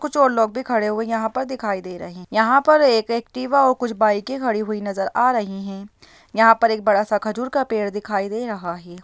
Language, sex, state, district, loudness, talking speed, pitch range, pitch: Hindi, female, Bihar, Lakhisarai, -20 LUFS, 240 wpm, 205-255 Hz, 220 Hz